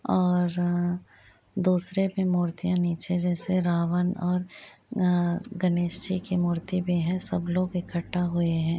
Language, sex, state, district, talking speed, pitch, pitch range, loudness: Hindi, female, Bihar, Muzaffarpur, 145 wpm, 180 Hz, 175-185 Hz, -27 LUFS